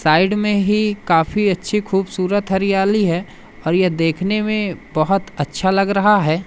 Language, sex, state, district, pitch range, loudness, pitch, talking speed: Hindi, male, Madhya Pradesh, Umaria, 175-205 Hz, -17 LUFS, 195 Hz, 160 wpm